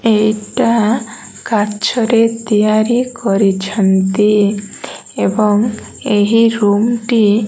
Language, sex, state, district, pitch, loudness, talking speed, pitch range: Odia, female, Odisha, Malkangiri, 215 Hz, -14 LUFS, 80 wpm, 205-230 Hz